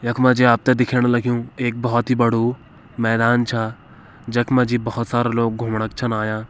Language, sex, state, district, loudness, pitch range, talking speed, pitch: Kumaoni, male, Uttarakhand, Uttarkashi, -19 LUFS, 115-125 Hz, 175 wpm, 120 Hz